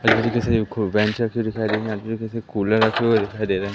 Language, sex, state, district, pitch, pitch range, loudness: Hindi, male, Madhya Pradesh, Katni, 110 Hz, 105-115 Hz, -21 LUFS